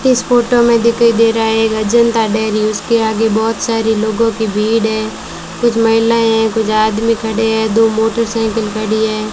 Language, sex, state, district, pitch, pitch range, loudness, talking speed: Hindi, female, Rajasthan, Bikaner, 225 Hz, 220-230 Hz, -13 LUFS, 180 wpm